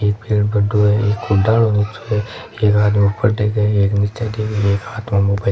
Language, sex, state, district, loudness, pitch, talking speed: Marwari, male, Rajasthan, Nagaur, -17 LUFS, 105 Hz, 230 wpm